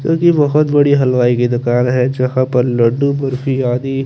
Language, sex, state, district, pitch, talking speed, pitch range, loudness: Hindi, male, Chandigarh, Chandigarh, 130 Hz, 190 wpm, 125-140 Hz, -14 LUFS